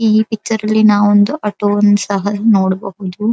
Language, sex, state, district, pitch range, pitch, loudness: Kannada, female, Karnataka, Dharwad, 205-220 Hz, 205 Hz, -13 LUFS